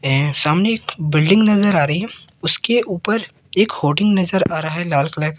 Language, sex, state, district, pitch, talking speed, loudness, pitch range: Hindi, male, Madhya Pradesh, Katni, 175 Hz, 210 wpm, -17 LUFS, 150-205 Hz